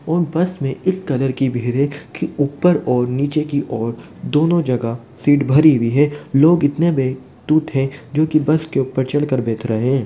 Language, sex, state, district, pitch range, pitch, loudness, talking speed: Hindi, male, Bihar, Muzaffarpur, 130-155 Hz, 140 Hz, -18 LUFS, 205 wpm